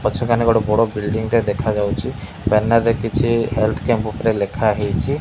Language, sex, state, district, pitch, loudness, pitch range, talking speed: Odia, male, Odisha, Malkangiri, 110 Hz, -18 LUFS, 105-115 Hz, 150 wpm